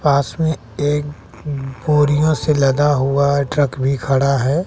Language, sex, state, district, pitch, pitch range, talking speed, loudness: Hindi, male, Bihar, West Champaran, 145 Hz, 135-150 Hz, 165 wpm, -17 LUFS